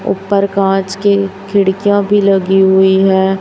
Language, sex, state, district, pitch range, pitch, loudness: Hindi, female, Chhattisgarh, Raipur, 190-200 Hz, 195 Hz, -12 LUFS